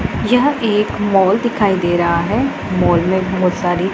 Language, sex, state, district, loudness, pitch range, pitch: Hindi, female, Punjab, Pathankot, -15 LUFS, 175-210 Hz, 190 Hz